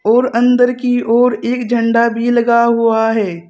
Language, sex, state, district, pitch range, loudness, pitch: Hindi, female, Uttar Pradesh, Saharanpur, 230-245 Hz, -13 LUFS, 235 Hz